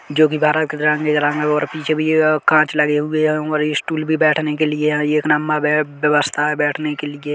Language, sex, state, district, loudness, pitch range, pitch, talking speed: Hindi, male, Chhattisgarh, Kabirdham, -17 LUFS, 150-155 Hz, 150 Hz, 210 wpm